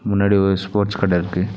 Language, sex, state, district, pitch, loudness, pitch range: Tamil, male, Tamil Nadu, Nilgiris, 100 Hz, -18 LUFS, 95-100 Hz